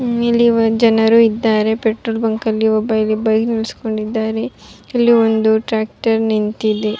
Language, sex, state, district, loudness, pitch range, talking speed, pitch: Kannada, female, Karnataka, Raichur, -15 LUFS, 220-225 Hz, 110 wpm, 220 Hz